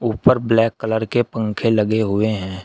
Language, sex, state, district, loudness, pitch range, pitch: Hindi, male, Uttar Pradesh, Shamli, -18 LUFS, 105-115 Hz, 110 Hz